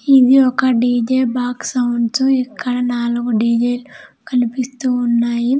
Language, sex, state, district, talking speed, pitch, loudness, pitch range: Telugu, female, Andhra Pradesh, Anantapur, 105 wpm, 245 Hz, -16 LUFS, 240-260 Hz